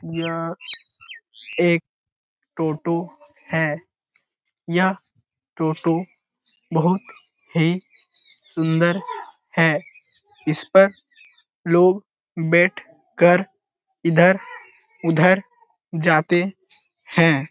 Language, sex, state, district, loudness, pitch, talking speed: Hindi, male, Bihar, Lakhisarai, -20 LUFS, 175 Hz, 65 wpm